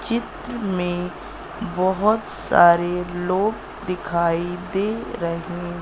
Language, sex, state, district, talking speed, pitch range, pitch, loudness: Hindi, female, Madhya Pradesh, Katni, 80 wpm, 175-205 Hz, 180 Hz, -22 LUFS